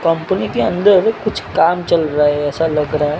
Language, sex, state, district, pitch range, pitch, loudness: Hindi, male, Gujarat, Gandhinagar, 150-180 Hz, 165 Hz, -15 LUFS